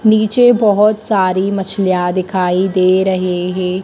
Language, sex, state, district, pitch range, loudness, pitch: Hindi, male, Madhya Pradesh, Dhar, 185-210 Hz, -13 LUFS, 190 Hz